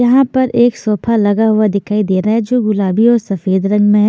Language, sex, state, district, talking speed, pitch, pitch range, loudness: Hindi, female, Punjab, Fazilka, 250 wpm, 215 Hz, 205-235 Hz, -13 LUFS